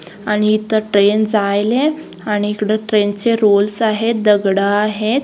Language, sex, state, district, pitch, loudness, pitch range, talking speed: Marathi, female, Karnataka, Belgaum, 215 Hz, -15 LUFS, 205-220 Hz, 125 wpm